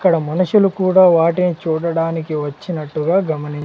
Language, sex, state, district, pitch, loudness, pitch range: Telugu, male, Andhra Pradesh, Sri Satya Sai, 165 Hz, -16 LUFS, 155-185 Hz